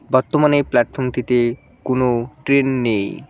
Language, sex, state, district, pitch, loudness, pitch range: Bengali, male, West Bengal, Cooch Behar, 130 Hz, -18 LUFS, 120-140 Hz